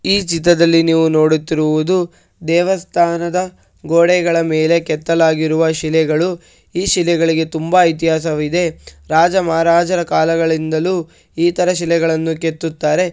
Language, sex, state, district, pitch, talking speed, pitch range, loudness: Kannada, male, Karnataka, Shimoga, 165 Hz, 90 wpm, 160-175 Hz, -15 LUFS